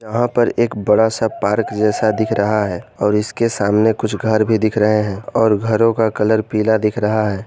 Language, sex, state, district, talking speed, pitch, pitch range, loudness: Hindi, male, Jharkhand, Garhwa, 215 wpm, 110 Hz, 105-110 Hz, -16 LUFS